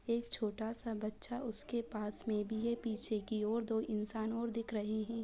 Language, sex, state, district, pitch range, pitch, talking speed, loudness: Bajjika, female, Bihar, Vaishali, 215-230 Hz, 220 Hz, 205 wpm, -39 LUFS